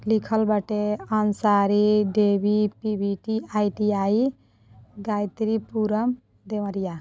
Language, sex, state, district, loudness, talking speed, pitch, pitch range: Bhojpuri, female, Uttar Pradesh, Deoria, -24 LUFS, 60 wpm, 210 Hz, 200-220 Hz